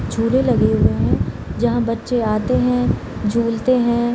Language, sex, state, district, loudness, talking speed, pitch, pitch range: Hindi, female, Bihar, Samastipur, -18 LUFS, 145 wpm, 230 Hz, 215-240 Hz